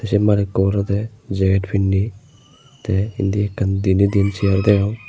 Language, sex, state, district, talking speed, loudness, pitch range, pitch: Chakma, male, Tripura, Unakoti, 140 wpm, -19 LUFS, 95-105 Hz, 100 Hz